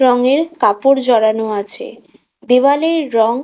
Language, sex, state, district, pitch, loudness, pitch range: Bengali, female, West Bengal, Kolkata, 250 Hz, -14 LUFS, 220-275 Hz